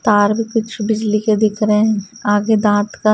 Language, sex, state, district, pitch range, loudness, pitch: Hindi, female, Haryana, Rohtak, 210-220 Hz, -16 LUFS, 215 Hz